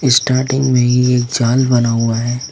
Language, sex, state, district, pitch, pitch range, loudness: Hindi, male, Uttar Pradesh, Lucknow, 125 Hz, 120-130 Hz, -14 LUFS